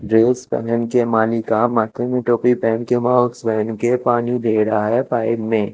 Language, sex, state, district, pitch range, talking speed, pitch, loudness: Hindi, male, Chandigarh, Chandigarh, 110-120 Hz, 135 wpm, 115 Hz, -18 LUFS